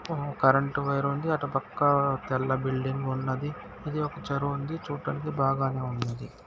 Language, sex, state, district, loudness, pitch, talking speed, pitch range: Telugu, male, Andhra Pradesh, Guntur, -28 LUFS, 140 Hz, 140 wpm, 135-145 Hz